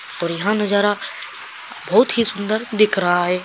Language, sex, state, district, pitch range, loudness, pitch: Hindi, male, Maharashtra, Solapur, 180-215 Hz, -18 LUFS, 205 Hz